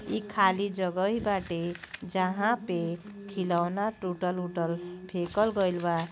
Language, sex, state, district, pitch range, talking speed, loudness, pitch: Bhojpuri, female, Uttar Pradesh, Gorakhpur, 175-200 Hz, 115 wpm, -30 LUFS, 185 Hz